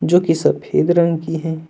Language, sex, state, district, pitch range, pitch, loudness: Hindi, male, Jharkhand, Deoghar, 160-170 Hz, 165 Hz, -17 LUFS